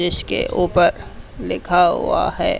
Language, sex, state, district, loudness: Hindi, male, Haryana, Charkhi Dadri, -17 LUFS